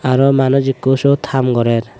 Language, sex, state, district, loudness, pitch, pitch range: Chakma, male, Tripura, West Tripura, -14 LUFS, 130 Hz, 120-135 Hz